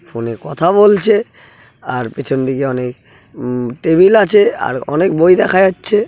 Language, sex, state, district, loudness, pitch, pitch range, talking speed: Bengali, male, West Bengal, Purulia, -13 LUFS, 155 Hz, 125-205 Hz, 165 wpm